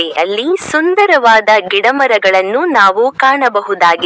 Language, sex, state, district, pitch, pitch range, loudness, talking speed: Kannada, female, Karnataka, Koppal, 215 Hz, 190-270 Hz, -10 LUFS, 90 wpm